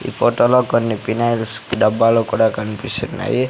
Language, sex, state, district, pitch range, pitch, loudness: Telugu, male, Andhra Pradesh, Sri Satya Sai, 110-125 Hz, 115 Hz, -17 LUFS